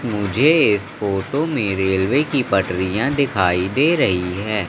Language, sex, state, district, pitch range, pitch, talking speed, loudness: Hindi, male, Madhya Pradesh, Katni, 95-140 Hz, 100 Hz, 140 wpm, -18 LUFS